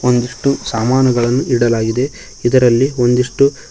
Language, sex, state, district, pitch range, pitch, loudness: Kannada, male, Karnataka, Koppal, 120-130 Hz, 125 Hz, -14 LUFS